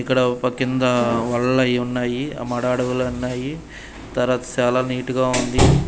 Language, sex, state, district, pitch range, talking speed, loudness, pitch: Telugu, male, Andhra Pradesh, Manyam, 125-130 Hz, 120 wpm, -21 LUFS, 125 Hz